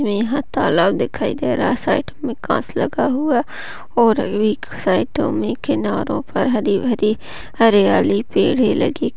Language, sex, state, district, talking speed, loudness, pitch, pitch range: Hindi, female, Maharashtra, Sindhudurg, 185 wpm, -18 LUFS, 225 Hz, 215-255 Hz